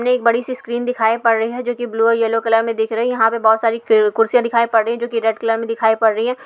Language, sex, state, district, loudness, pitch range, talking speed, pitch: Hindi, female, Uttar Pradesh, Hamirpur, -17 LUFS, 225-240 Hz, 355 wpm, 230 Hz